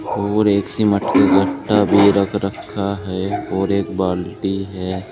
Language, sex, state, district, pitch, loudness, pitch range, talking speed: Hindi, male, Uttar Pradesh, Saharanpur, 100 Hz, -18 LUFS, 95-105 Hz, 150 wpm